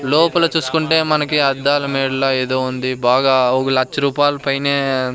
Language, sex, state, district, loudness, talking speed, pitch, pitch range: Telugu, male, Andhra Pradesh, Sri Satya Sai, -16 LUFS, 130 wpm, 135 Hz, 130-145 Hz